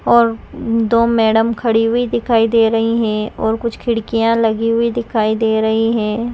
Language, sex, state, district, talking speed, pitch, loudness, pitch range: Hindi, female, Chhattisgarh, Raigarh, 170 wpm, 230 Hz, -15 LUFS, 225-230 Hz